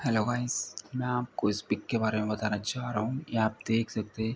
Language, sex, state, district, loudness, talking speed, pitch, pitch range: Hindi, male, Uttar Pradesh, Ghazipur, -31 LUFS, 250 wpm, 110 Hz, 110-125 Hz